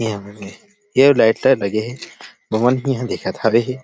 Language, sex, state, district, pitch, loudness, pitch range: Chhattisgarhi, male, Chhattisgarh, Rajnandgaon, 120 Hz, -17 LUFS, 110-135 Hz